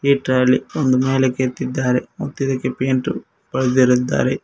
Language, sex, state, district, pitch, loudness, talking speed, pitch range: Kannada, male, Karnataka, Koppal, 130 Hz, -18 LUFS, 110 wpm, 130-135 Hz